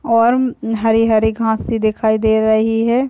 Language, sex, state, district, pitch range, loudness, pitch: Hindi, female, Chhattisgarh, Kabirdham, 220-230 Hz, -15 LUFS, 225 Hz